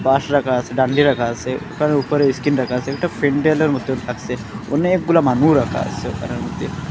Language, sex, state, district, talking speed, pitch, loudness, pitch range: Bengali, male, Assam, Hailakandi, 165 wpm, 135 Hz, -18 LUFS, 125-145 Hz